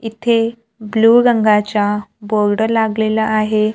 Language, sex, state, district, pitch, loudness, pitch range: Marathi, female, Maharashtra, Gondia, 220 Hz, -15 LUFS, 215-225 Hz